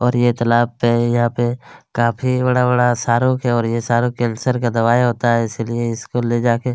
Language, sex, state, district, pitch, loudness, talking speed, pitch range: Hindi, male, Chhattisgarh, Kabirdham, 120 Hz, -17 LUFS, 220 wpm, 115-125 Hz